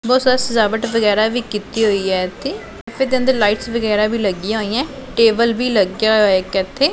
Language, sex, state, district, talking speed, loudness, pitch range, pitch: Punjabi, female, Punjab, Pathankot, 200 wpm, -17 LUFS, 210-245 Hz, 220 Hz